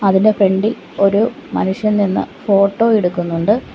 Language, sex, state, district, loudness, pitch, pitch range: Malayalam, female, Kerala, Kollam, -15 LUFS, 200 Hz, 195-215 Hz